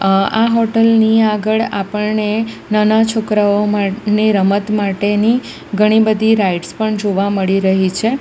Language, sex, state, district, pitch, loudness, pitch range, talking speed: Gujarati, female, Gujarat, Valsad, 210 Hz, -14 LUFS, 200-220 Hz, 140 wpm